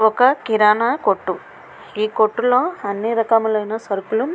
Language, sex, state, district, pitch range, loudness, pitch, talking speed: Telugu, female, Andhra Pradesh, Krishna, 215-240 Hz, -18 LUFS, 220 Hz, 125 wpm